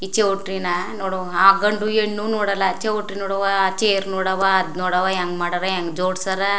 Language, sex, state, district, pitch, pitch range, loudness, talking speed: Kannada, female, Karnataka, Chamarajanagar, 195 Hz, 185-200 Hz, -20 LUFS, 190 wpm